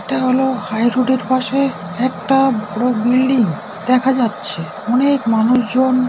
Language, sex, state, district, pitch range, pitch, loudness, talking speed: Bengali, male, West Bengal, North 24 Parganas, 220-260 Hz, 250 Hz, -16 LUFS, 140 wpm